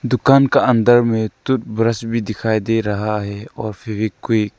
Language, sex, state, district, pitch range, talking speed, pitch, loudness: Hindi, male, Arunachal Pradesh, Lower Dibang Valley, 110-120 Hz, 180 wpm, 115 Hz, -17 LUFS